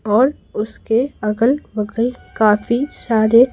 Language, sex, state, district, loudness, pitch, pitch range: Hindi, female, Bihar, Patna, -18 LUFS, 225 Hz, 215-250 Hz